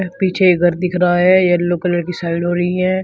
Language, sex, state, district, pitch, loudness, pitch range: Hindi, male, Uttar Pradesh, Shamli, 180 Hz, -15 LUFS, 175-185 Hz